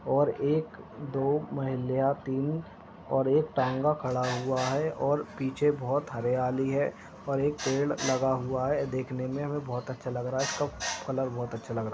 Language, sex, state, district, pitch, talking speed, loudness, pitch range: Hindi, male, Uttar Pradesh, Gorakhpur, 135 Hz, 185 wpm, -30 LUFS, 130-145 Hz